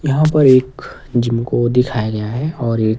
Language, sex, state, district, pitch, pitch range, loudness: Hindi, male, Himachal Pradesh, Shimla, 120 Hz, 115-135 Hz, -16 LUFS